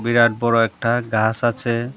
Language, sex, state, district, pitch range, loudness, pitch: Bengali, male, Tripura, Dhalai, 115-120 Hz, -19 LUFS, 115 Hz